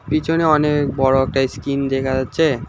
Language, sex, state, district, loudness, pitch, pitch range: Bengali, male, West Bengal, Alipurduar, -18 LUFS, 140 Hz, 135-155 Hz